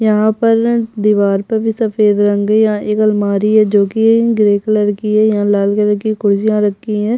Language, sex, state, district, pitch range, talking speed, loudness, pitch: Hindi, female, Chhattisgarh, Jashpur, 205-220 Hz, 210 wpm, -13 LUFS, 210 Hz